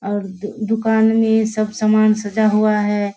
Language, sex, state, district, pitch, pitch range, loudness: Hindi, female, Bihar, Kishanganj, 215 Hz, 205-220 Hz, -17 LUFS